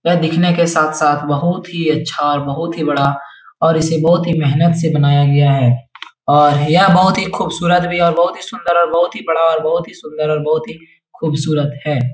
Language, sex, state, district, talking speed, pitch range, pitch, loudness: Hindi, male, Uttar Pradesh, Etah, 205 wpm, 145-170 Hz, 160 Hz, -14 LUFS